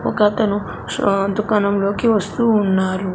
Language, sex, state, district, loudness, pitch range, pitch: Telugu, female, Andhra Pradesh, Sri Satya Sai, -18 LUFS, 195-215 Hz, 205 Hz